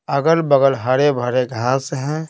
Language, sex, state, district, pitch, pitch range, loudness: Hindi, male, Bihar, Patna, 135 Hz, 130-145 Hz, -17 LUFS